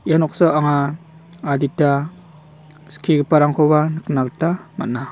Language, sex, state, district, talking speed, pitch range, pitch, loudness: Garo, male, Meghalaya, West Garo Hills, 95 wpm, 145-160 Hz, 155 Hz, -18 LUFS